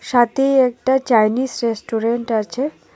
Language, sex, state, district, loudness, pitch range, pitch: Bengali, female, Tripura, West Tripura, -18 LUFS, 230-265 Hz, 245 Hz